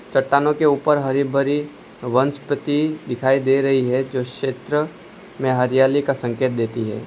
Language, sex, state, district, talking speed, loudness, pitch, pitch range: Hindi, male, Gujarat, Valsad, 155 wpm, -20 LUFS, 135 Hz, 130-145 Hz